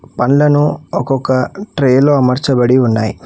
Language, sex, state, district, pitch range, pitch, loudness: Telugu, male, Telangana, Hyderabad, 125-145 Hz, 130 Hz, -13 LUFS